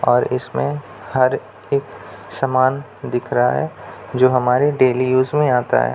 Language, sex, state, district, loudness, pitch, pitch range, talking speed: Hindi, male, Bihar, Jamui, -18 LUFS, 130 Hz, 125-140 Hz, 150 wpm